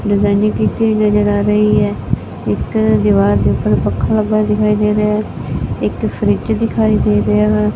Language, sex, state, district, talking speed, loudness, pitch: Punjabi, female, Punjab, Fazilka, 185 wpm, -14 LUFS, 205 Hz